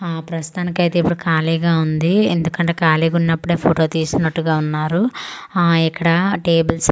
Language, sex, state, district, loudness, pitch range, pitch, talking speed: Telugu, female, Andhra Pradesh, Manyam, -17 LUFS, 160-175 Hz, 165 Hz, 140 wpm